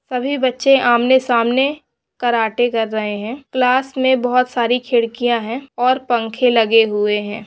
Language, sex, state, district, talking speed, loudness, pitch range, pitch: Hindi, female, Bihar, Saharsa, 155 wpm, -16 LUFS, 230-260 Hz, 245 Hz